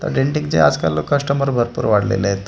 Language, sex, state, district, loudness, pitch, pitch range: Marathi, male, Maharashtra, Gondia, -17 LUFS, 110 Hz, 95-140 Hz